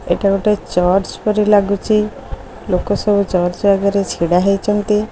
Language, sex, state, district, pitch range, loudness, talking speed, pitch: Odia, female, Odisha, Khordha, 190-210 Hz, -16 LUFS, 115 wpm, 200 Hz